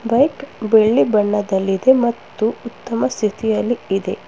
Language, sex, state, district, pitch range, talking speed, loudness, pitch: Kannada, female, Karnataka, Bangalore, 210-235 Hz, 100 wpm, -17 LUFS, 220 Hz